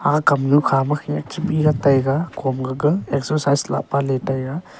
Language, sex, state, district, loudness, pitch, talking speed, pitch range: Wancho, male, Arunachal Pradesh, Longding, -19 LUFS, 140 Hz, 175 wpm, 135-150 Hz